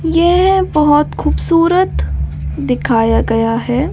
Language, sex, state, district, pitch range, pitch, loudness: Hindi, female, Delhi, New Delhi, 225-335 Hz, 295 Hz, -14 LUFS